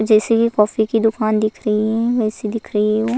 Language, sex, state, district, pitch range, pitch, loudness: Hindi, female, Goa, North and South Goa, 215-225 Hz, 220 Hz, -18 LUFS